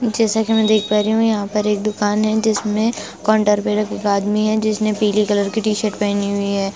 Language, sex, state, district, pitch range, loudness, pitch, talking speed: Hindi, female, Bihar, West Champaran, 205-215 Hz, -18 LUFS, 210 Hz, 230 wpm